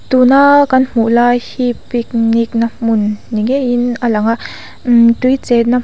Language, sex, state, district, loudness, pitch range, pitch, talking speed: Mizo, female, Mizoram, Aizawl, -12 LUFS, 230-255 Hz, 240 Hz, 165 wpm